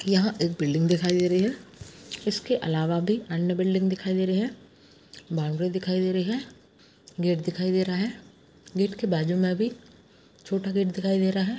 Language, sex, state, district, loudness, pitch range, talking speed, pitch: Hindi, female, Bihar, Araria, -26 LUFS, 180-200 Hz, 195 wpm, 185 Hz